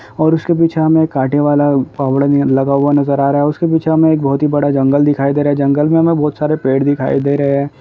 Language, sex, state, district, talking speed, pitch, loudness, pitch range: Hindi, male, Bihar, Gaya, 270 wpm, 145 Hz, -13 LUFS, 140-155 Hz